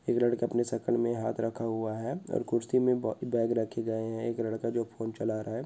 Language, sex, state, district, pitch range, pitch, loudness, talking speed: Hindi, male, West Bengal, Purulia, 115-120 Hz, 115 Hz, -31 LUFS, 245 wpm